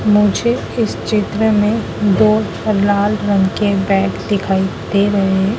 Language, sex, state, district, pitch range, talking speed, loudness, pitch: Hindi, female, Madhya Pradesh, Dhar, 195-215 Hz, 130 wpm, -15 LUFS, 205 Hz